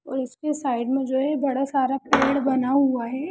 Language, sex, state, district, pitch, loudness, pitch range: Hindi, female, Bihar, Sitamarhi, 270 Hz, -23 LUFS, 260-280 Hz